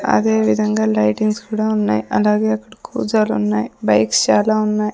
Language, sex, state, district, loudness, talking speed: Telugu, female, Andhra Pradesh, Sri Satya Sai, -17 LUFS, 135 wpm